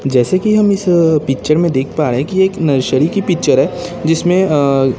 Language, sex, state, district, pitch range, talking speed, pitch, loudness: Hindi, male, Chhattisgarh, Raipur, 135-180 Hz, 215 wpm, 165 Hz, -13 LUFS